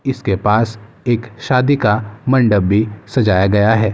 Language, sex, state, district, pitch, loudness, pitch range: Hindi, male, Uttar Pradesh, Muzaffarnagar, 110 Hz, -15 LUFS, 105-125 Hz